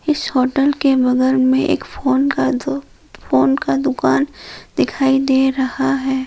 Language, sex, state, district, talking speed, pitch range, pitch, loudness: Hindi, female, Jharkhand, Palamu, 155 wpm, 255-275 Hz, 265 Hz, -17 LUFS